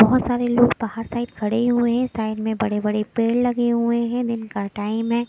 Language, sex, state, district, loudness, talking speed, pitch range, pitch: Hindi, female, Chhattisgarh, Raipur, -21 LUFS, 225 wpm, 220-240 Hz, 235 Hz